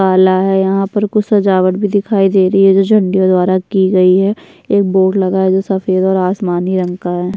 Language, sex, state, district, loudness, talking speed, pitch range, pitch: Hindi, female, Chhattisgarh, Sukma, -12 LUFS, 230 wpm, 185-195 Hz, 190 Hz